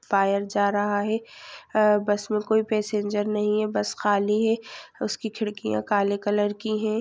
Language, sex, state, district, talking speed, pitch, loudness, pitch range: Hindi, female, Jharkhand, Sahebganj, 160 wpm, 210 Hz, -25 LUFS, 205-220 Hz